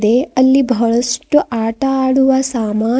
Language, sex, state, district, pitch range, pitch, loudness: Kannada, female, Karnataka, Bidar, 230-265 Hz, 255 Hz, -14 LUFS